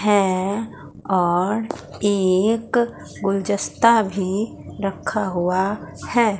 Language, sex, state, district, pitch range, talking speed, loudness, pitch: Hindi, female, Bihar, Katihar, 190-215 Hz, 75 wpm, -21 LUFS, 200 Hz